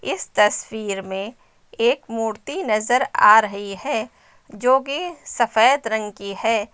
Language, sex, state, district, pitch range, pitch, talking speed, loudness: Hindi, female, Uttar Pradesh, Lucknow, 210-255 Hz, 220 Hz, 135 wpm, -20 LUFS